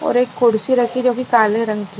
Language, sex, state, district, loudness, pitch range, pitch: Hindi, female, Chhattisgarh, Bilaspur, -16 LUFS, 220-250 Hz, 235 Hz